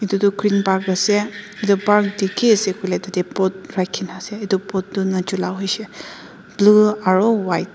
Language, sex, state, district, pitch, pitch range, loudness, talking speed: Nagamese, female, Nagaland, Dimapur, 195 Hz, 190-210 Hz, -19 LUFS, 195 wpm